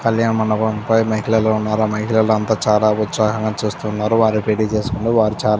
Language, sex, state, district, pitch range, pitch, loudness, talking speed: Telugu, male, Andhra Pradesh, Chittoor, 105-110 Hz, 110 Hz, -17 LUFS, 170 wpm